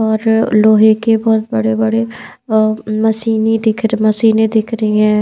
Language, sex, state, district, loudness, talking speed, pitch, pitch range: Hindi, female, Bihar, Patna, -13 LUFS, 140 wpm, 220 Hz, 215-225 Hz